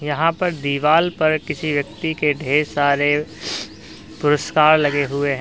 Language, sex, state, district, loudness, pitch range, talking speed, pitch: Hindi, male, Uttar Pradesh, Lalitpur, -19 LUFS, 140-155 Hz, 145 wpm, 150 Hz